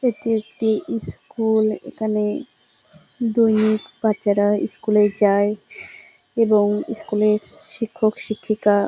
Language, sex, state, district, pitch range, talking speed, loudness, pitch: Bengali, female, West Bengal, Jalpaiguri, 210-220 Hz, 100 wpm, -20 LUFS, 215 Hz